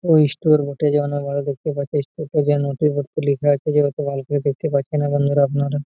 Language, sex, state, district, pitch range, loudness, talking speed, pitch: Bengali, male, West Bengal, Malda, 140-150 Hz, -20 LUFS, 145 wpm, 145 Hz